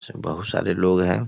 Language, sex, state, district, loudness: Hindi, male, Bihar, East Champaran, -22 LUFS